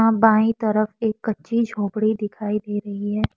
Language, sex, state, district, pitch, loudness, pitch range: Hindi, female, Assam, Kamrup Metropolitan, 215 Hz, -22 LUFS, 210-220 Hz